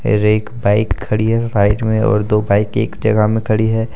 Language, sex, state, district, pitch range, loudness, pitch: Hindi, male, Jharkhand, Deoghar, 105-110 Hz, -15 LUFS, 110 Hz